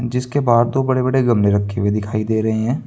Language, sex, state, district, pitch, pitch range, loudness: Hindi, male, Uttar Pradesh, Saharanpur, 120 Hz, 105-125 Hz, -17 LUFS